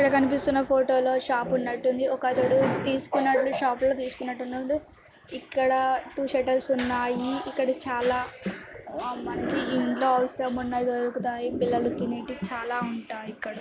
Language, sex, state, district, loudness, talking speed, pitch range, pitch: Telugu, female, Telangana, Nalgonda, -26 LUFS, 125 wpm, 245-265 Hz, 255 Hz